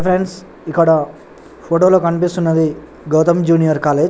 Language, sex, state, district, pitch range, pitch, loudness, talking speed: Telugu, male, Telangana, Nalgonda, 160-175 Hz, 165 Hz, -15 LUFS, 130 wpm